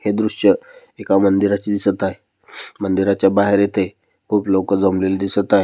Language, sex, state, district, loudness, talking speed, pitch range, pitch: Marathi, male, Maharashtra, Dhule, -18 LUFS, 150 wpm, 95-105 Hz, 100 Hz